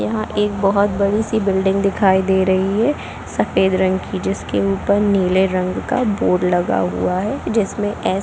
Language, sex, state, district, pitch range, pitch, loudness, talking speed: Hindi, female, Chhattisgarh, Bilaspur, 185-205 Hz, 190 Hz, -18 LUFS, 160 wpm